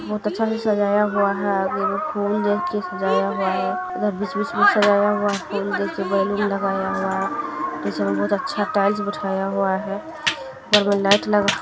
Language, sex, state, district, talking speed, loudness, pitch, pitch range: Hindi, female, Bihar, Bhagalpur, 195 wpm, -21 LUFS, 200 Hz, 195-210 Hz